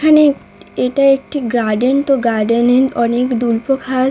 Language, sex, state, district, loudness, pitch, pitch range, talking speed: Bengali, female, West Bengal, Dakshin Dinajpur, -14 LUFS, 255 Hz, 235-275 Hz, 145 wpm